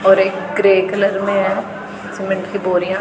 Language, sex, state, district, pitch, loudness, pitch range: Hindi, female, Punjab, Pathankot, 195 Hz, -17 LUFS, 190-200 Hz